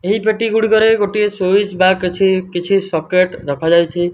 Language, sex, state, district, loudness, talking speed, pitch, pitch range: Odia, male, Odisha, Malkangiri, -15 LUFS, 145 wpm, 190 Hz, 175-210 Hz